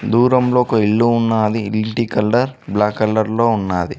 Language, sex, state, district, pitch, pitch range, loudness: Telugu, male, Telangana, Mahabubabad, 110 Hz, 105-120 Hz, -16 LUFS